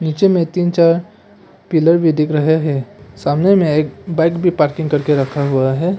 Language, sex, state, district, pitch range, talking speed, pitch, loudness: Hindi, male, Arunachal Pradesh, Papum Pare, 150-175 Hz, 190 wpm, 160 Hz, -15 LUFS